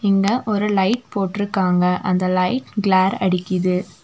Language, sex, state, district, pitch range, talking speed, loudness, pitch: Tamil, female, Tamil Nadu, Nilgiris, 185-205 Hz, 120 wpm, -19 LUFS, 190 Hz